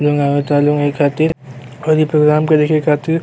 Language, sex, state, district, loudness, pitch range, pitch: Bhojpuri, male, Uttar Pradesh, Gorakhpur, -14 LUFS, 145-155 Hz, 150 Hz